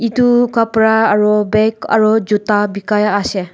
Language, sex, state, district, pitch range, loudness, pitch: Nagamese, female, Nagaland, Dimapur, 210-225 Hz, -13 LUFS, 215 Hz